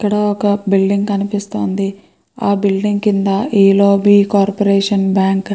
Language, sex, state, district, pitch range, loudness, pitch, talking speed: Telugu, female, Andhra Pradesh, Krishna, 195-205 Hz, -14 LUFS, 200 Hz, 120 wpm